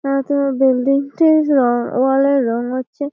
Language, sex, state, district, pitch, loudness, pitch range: Bengali, female, West Bengal, Malda, 275 Hz, -16 LUFS, 255-280 Hz